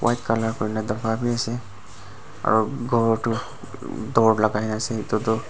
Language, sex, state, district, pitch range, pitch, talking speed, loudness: Nagamese, male, Nagaland, Dimapur, 110-115 Hz, 110 Hz, 165 wpm, -23 LUFS